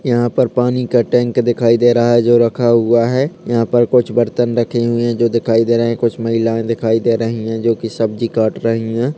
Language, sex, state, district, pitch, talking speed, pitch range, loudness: Hindi, male, Jharkhand, Sahebganj, 120 Hz, 240 wpm, 115-120 Hz, -15 LUFS